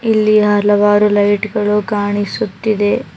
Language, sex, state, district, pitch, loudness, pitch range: Kannada, female, Karnataka, Bangalore, 205 Hz, -14 LUFS, 205-210 Hz